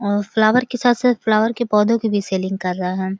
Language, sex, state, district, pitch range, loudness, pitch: Maithili, female, Bihar, Samastipur, 190-235 Hz, -18 LUFS, 215 Hz